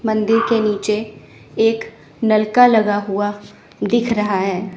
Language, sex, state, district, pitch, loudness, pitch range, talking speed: Hindi, female, Chandigarh, Chandigarh, 210 Hz, -17 LUFS, 200-225 Hz, 125 wpm